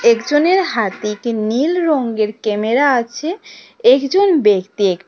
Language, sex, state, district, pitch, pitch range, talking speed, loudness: Bengali, female, Tripura, West Tripura, 235 Hz, 215-315 Hz, 120 wpm, -15 LUFS